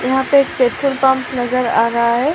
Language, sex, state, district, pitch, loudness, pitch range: Hindi, female, Maharashtra, Chandrapur, 255 Hz, -15 LUFS, 245-270 Hz